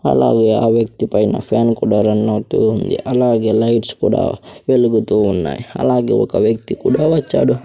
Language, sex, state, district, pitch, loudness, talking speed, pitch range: Telugu, male, Andhra Pradesh, Sri Satya Sai, 115 Hz, -15 LUFS, 150 wpm, 110-125 Hz